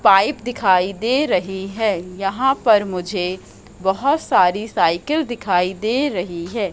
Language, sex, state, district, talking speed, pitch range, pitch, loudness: Hindi, female, Madhya Pradesh, Katni, 135 wpm, 180-240 Hz, 195 Hz, -19 LUFS